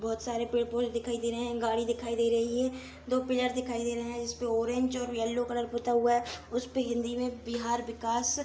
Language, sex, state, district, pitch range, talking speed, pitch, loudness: Hindi, female, Bihar, Gopalganj, 235-245 Hz, 235 wpm, 235 Hz, -31 LUFS